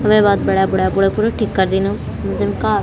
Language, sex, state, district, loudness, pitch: Garhwali, female, Uttarakhand, Tehri Garhwal, -16 LUFS, 190 Hz